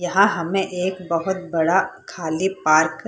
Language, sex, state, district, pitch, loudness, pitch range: Hindi, female, Bihar, Purnia, 180 Hz, -21 LUFS, 165-190 Hz